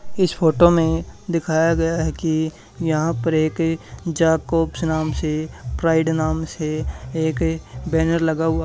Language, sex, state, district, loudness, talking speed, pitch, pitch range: Hindi, male, Haryana, Charkhi Dadri, -21 LUFS, 140 wpm, 160 Hz, 160-165 Hz